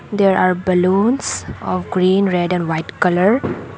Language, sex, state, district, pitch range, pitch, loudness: English, female, Assam, Kamrup Metropolitan, 180-195 Hz, 185 Hz, -17 LUFS